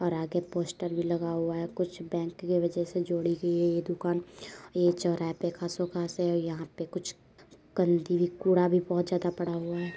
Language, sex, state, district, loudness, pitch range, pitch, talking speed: Hindi, female, Uttar Pradesh, Deoria, -30 LUFS, 170-175 Hz, 175 Hz, 185 wpm